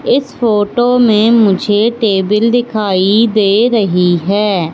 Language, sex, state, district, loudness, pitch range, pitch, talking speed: Hindi, female, Madhya Pradesh, Katni, -11 LUFS, 200-230 Hz, 210 Hz, 115 wpm